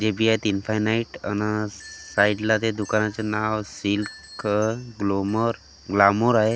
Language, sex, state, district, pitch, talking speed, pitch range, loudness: Marathi, male, Maharashtra, Gondia, 105 Hz, 130 wpm, 100-110 Hz, -23 LUFS